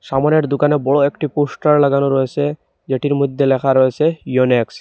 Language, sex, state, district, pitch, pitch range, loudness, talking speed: Bengali, male, Assam, Hailakandi, 140 Hz, 135-145 Hz, -16 LUFS, 150 wpm